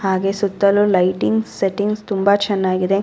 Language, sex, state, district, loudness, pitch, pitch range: Kannada, female, Karnataka, Raichur, -17 LUFS, 195 Hz, 185-200 Hz